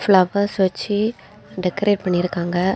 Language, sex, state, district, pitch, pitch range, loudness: Tamil, female, Tamil Nadu, Kanyakumari, 190 Hz, 180-205 Hz, -20 LUFS